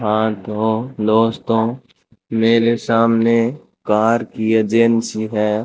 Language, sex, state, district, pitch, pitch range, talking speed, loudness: Hindi, male, Rajasthan, Bikaner, 115 Hz, 110-115 Hz, 95 wpm, -17 LUFS